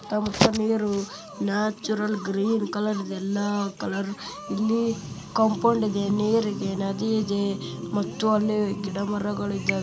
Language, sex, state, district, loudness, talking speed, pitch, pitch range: Kannada, male, Karnataka, Bellary, -26 LUFS, 105 wpm, 205 Hz, 200-215 Hz